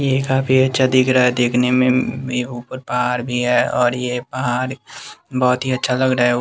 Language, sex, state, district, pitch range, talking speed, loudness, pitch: Hindi, male, Bihar, West Champaran, 125-130 Hz, 215 wpm, -18 LUFS, 125 Hz